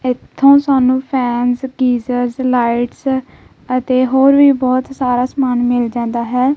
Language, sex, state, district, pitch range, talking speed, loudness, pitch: Punjabi, female, Punjab, Kapurthala, 245-265 Hz, 130 wpm, -14 LUFS, 255 Hz